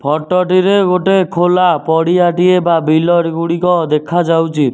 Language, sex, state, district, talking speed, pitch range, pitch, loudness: Odia, male, Odisha, Nuapada, 140 wpm, 165-180 Hz, 175 Hz, -12 LUFS